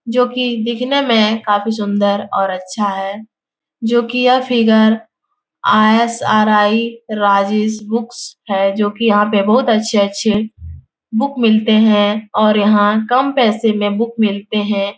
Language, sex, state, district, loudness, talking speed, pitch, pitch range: Hindi, female, Bihar, Jahanabad, -14 LUFS, 130 wpm, 220 Hz, 205-235 Hz